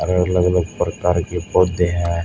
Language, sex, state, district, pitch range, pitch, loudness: Hindi, female, Haryana, Charkhi Dadri, 85-90 Hz, 90 Hz, -18 LUFS